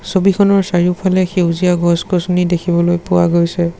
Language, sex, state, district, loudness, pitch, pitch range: Assamese, male, Assam, Sonitpur, -14 LUFS, 180 Hz, 170-185 Hz